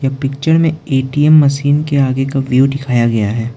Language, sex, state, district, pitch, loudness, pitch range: Hindi, male, Arunachal Pradesh, Lower Dibang Valley, 135 Hz, -13 LUFS, 130-145 Hz